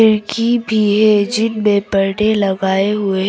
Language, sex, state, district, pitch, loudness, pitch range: Hindi, female, Arunachal Pradesh, Papum Pare, 210 Hz, -15 LUFS, 195-220 Hz